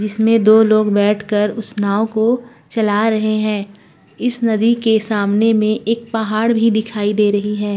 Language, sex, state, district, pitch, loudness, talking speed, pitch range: Hindi, female, Uttarakhand, Tehri Garhwal, 215 Hz, -16 LUFS, 170 wpm, 210-225 Hz